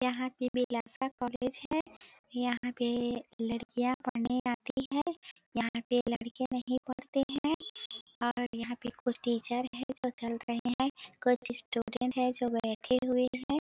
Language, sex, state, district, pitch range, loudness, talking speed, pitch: Hindi, female, Chhattisgarh, Bilaspur, 240-260 Hz, -34 LUFS, 150 wpm, 250 Hz